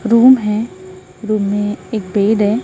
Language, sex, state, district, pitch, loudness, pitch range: Hindi, female, Maharashtra, Gondia, 210 Hz, -15 LUFS, 200-220 Hz